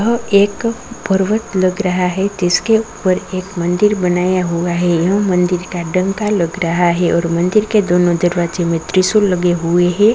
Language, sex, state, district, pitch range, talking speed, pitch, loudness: Kumaoni, female, Uttarakhand, Tehri Garhwal, 175-200 Hz, 175 wpm, 180 Hz, -15 LUFS